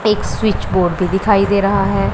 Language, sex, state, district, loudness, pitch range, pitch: Hindi, male, Punjab, Pathankot, -15 LUFS, 190-205 Hz, 200 Hz